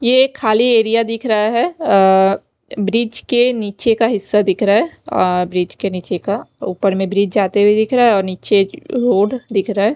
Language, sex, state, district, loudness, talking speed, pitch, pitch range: Hindi, female, Bihar, West Champaran, -15 LUFS, 205 wpm, 210 Hz, 195-230 Hz